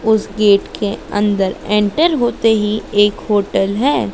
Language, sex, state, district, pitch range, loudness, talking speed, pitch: Hindi, female, Madhya Pradesh, Dhar, 205-220 Hz, -15 LUFS, 145 wpm, 210 Hz